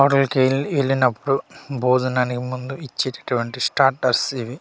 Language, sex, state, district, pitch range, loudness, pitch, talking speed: Telugu, male, Andhra Pradesh, Manyam, 125-135 Hz, -21 LUFS, 130 Hz, 105 wpm